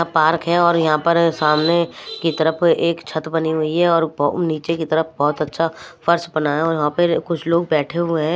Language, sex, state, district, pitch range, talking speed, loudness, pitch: Hindi, female, Maharashtra, Mumbai Suburban, 155-170 Hz, 215 wpm, -18 LUFS, 165 Hz